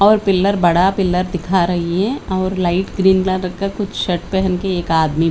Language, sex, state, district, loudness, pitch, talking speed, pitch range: Hindi, female, Chandigarh, Chandigarh, -17 LUFS, 185 Hz, 205 wpm, 175-195 Hz